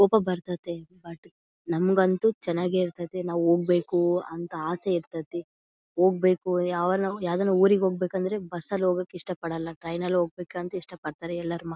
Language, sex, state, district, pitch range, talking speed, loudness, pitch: Kannada, female, Karnataka, Bellary, 170-185 Hz, 140 wpm, -27 LUFS, 180 Hz